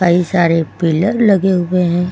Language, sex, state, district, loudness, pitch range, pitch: Hindi, female, Uttar Pradesh, Lucknow, -14 LUFS, 170-190 Hz, 180 Hz